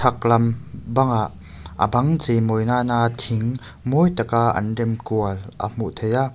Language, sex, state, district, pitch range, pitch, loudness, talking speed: Mizo, male, Mizoram, Aizawl, 110-125 Hz, 115 Hz, -21 LUFS, 140 wpm